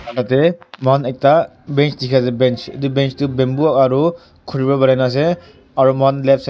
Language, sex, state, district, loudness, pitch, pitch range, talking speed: Nagamese, male, Nagaland, Kohima, -16 LUFS, 135 Hz, 130-140 Hz, 195 wpm